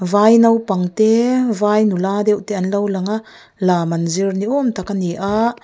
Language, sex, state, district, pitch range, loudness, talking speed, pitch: Mizo, female, Mizoram, Aizawl, 190-220 Hz, -17 LUFS, 215 wpm, 205 Hz